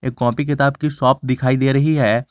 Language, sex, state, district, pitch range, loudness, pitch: Hindi, male, Jharkhand, Garhwa, 130-145 Hz, -17 LUFS, 135 Hz